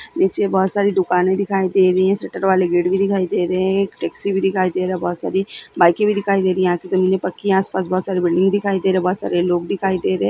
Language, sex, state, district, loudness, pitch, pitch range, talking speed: Hindi, female, Bihar, Gaya, -18 LUFS, 190 Hz, 185-195 Hz, 290 wpm